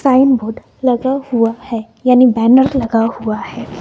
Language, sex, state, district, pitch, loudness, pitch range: Hindi, female, Bihar, West Champaran, 250 Hz, -14 LUFS, 230-260 Hz